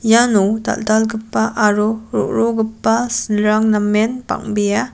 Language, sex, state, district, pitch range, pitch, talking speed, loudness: Garo, female, Meghalaya, West Garo Hills, 210-225 Hz, 220 Hz, 85 wpm, -16 LUFS